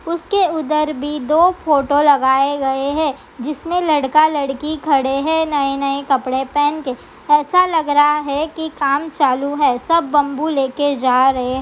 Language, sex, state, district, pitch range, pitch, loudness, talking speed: Hindi, female, Bihar, Begusarai, 275-310 Hz, 290 Hz, -16 LUFS, 160 wpm